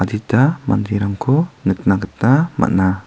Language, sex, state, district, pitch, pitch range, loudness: Garo, male, Meghalaya, South Garo Hills, 105 Hz, 95-135 Hz, -17 LUFS